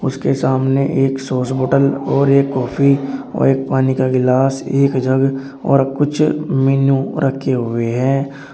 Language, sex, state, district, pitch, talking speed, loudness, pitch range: Hindi, male, Uttar Pradesh, Shamli, 135 Hz, 150 wpm, -16 LUFS, 130-140 Hz